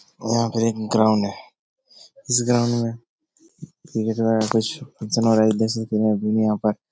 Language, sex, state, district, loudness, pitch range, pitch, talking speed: Hindi, male, Bihar, Supaul, -21 LUFS, 110-120 Hz, 115 Hz, 115 wpm